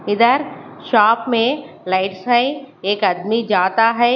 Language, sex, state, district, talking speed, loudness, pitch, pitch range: Hindi, female, Haryana, Charkhi Dadri, 130 wpm, -17 LUFS, 230 Hz, 205-245 Hz